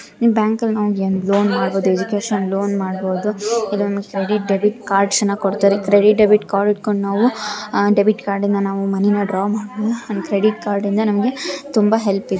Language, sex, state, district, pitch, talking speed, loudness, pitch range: Kannada, female, Karnataka, Shimoga, 205 Hz, 170 wpm, -17 LUFS, 200-210 Hz